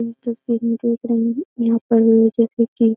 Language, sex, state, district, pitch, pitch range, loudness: Hindi, female, Uttar Pradesh, Jyotiba Phule Nagar, 230 Hz, 230-235 Hz, -18 LUFS